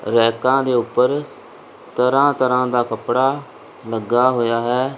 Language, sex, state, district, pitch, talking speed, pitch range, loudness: Punjabi, male, Punjab, Kapurthala, 125 Hz, 120 wpm, 115-130 Hz, -18 LUFS